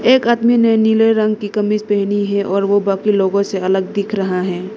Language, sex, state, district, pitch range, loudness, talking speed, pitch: Hindi, female, Arunachal Pradesh, Lower Dibang Valley, 195-215 Hz, -15 LUFS, 225 wpm, 205 Hz